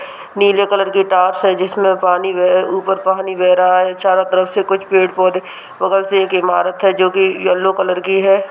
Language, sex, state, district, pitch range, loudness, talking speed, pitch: Hindi, male, Bihar, Purnia, 185-195 Hz, -14 LUFS, 205 wpm, 190 Hz